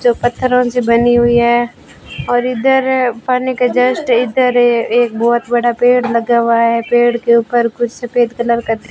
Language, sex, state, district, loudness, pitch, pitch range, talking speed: Hindi, female, Rajasthan, Bikaner, -13 LUFS, 240 Hz, 235-245 Hz, 190 wpm